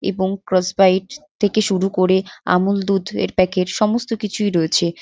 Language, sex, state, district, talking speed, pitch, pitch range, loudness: Bengali, female, West Bengal, North 24 Parganas, 145 wpm, 195 Hz, 185-205 Hz, -18 LUFS